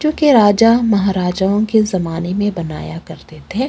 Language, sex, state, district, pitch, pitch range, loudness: Hindi, female, Chhattisgarh, Kabirdham, 200 Hz, 170-225 Hz, -15 LUFS